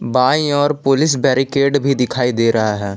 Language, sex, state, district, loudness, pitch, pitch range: Hindi, male, Jharkhand, Palamu, -15 LUFS, 135 Hz, 115-145 Hz